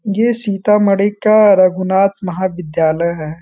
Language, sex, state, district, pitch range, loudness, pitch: Hindi, male, Bihar, Sitamarhi, 180-210 Hz, -14 LUFS, 195 Hz